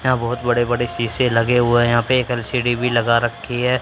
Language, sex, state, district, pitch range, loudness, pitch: Hindi, male, Haryana, Charkhi Dadri, 120-125 Hz, -18 LUFS, 120 Hz